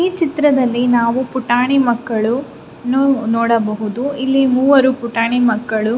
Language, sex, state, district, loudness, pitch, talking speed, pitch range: Kannada, female, Karnataka, Raichur, -15 LUFS, 245 Hz, 100 wpm, 230-270 Hz